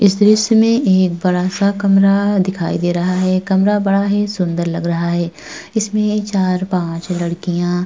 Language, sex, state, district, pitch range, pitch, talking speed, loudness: Hindi, female, Uttar Pradesh, Jalaun, 175-205 Hz, 185 Hz, 175 wpm, -16 LUFS